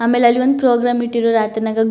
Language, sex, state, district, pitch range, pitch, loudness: Kannada, female, Karnataka, Chamarajanagar, 225-245 Hz, 235 Hz, -15 LUFS